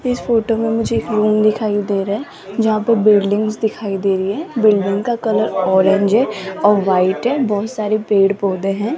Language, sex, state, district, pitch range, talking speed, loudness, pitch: Hindi, female, Rajasthan, Jaipur, 200-225 Hz, 195 wpm, -16 LUFS, 215 Hz